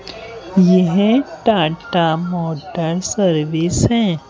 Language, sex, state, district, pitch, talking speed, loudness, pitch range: Hindi, female, Madhya Pradesh, Bhopal, 180 Hz, 70 wpm, -16 LUFS, 165-205 Hz